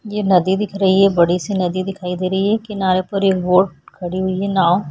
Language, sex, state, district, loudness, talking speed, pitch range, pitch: Hindi, female, Chhattisgarh, Sukma, -17 LUFS, 255 wpm, 185-195 Hz, 190 Hz